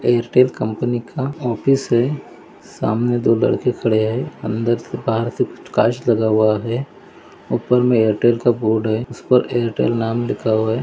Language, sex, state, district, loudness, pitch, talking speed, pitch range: Hindi, male, Maharashtra, Dhule, -18 LUFS, 120 Hz, 175 wpm, 110-125 Hz